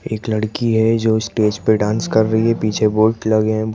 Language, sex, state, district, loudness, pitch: Hindi, male, Madhya Pradesh, Bhopal, -17 LUFS, 110 Hz